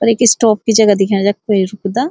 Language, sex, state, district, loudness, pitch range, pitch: Garhwali, female, Uttarakhand, Uttarkashi, -13 LUFS, 200-230 Hz, 210 Hz